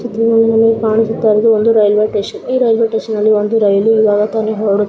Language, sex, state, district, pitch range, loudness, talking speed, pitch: Kannada, female, Karnataka, Gulbarga, 210-225 Hz, -12 LUFS, 185 wpm, 220 Hz